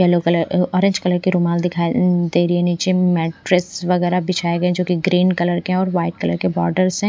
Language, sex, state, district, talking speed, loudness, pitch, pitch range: Hindi, female, Punjab, Pathankot, 235 wpm, -18 LUFS, 180 Hz, 170-180 Hz